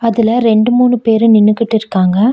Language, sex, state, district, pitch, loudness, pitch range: Tamil, female, Tamil Nadu, Nilgiris, 225 Hz, -11 LUFS, 215-230 Hz